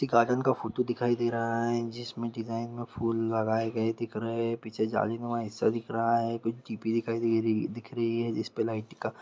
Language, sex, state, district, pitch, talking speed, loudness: Hindi, male, Bihar, East Champaran, 115 Hz, 215 wpm, -30 LUFS